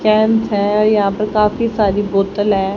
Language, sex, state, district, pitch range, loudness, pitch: Hindi, female, Haryana, Jhajjar, 200-215 Hz, -15 LUFS, 210 Hz